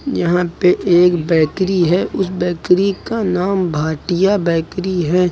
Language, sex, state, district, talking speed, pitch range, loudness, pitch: Hindi, male, Uttar Pradesh, Lucknow, 135 wpm, 170-185 Hz, -16 LUFS, 180 Hz